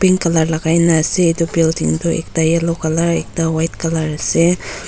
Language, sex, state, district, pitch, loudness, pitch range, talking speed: Nagamese, female, Nagaland, Dimapur, 165 Hz, -16 LUFS, 160-170 Hz, 170 wpm